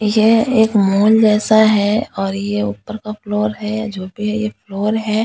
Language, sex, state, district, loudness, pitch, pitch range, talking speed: Hindi, female, Delhi, New Delhi, -16 LUFS, 215 Hz, 205-220 Hz, 215 wpm